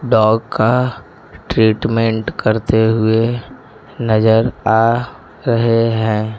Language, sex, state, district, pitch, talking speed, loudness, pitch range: Hindi, male, Maharashtra, Mumbai Suburban, 110 Hz, 85 wpm, -15 LUFS, 110-115 Hz